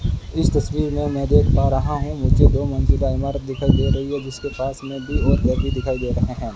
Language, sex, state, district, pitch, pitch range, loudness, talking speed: Hindi, male, Rajasthan, Bikaner, 135 Hz, 125-140 Hz, -20 LUFS, 220 wpm